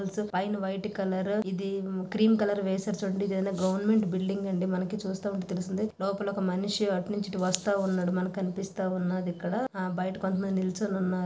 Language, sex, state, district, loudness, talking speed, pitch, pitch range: Telugu, female, Andhra Pradesh, Anantapur, -30 LUFS, 175 wpm, 195 Hz, 185-200 Hz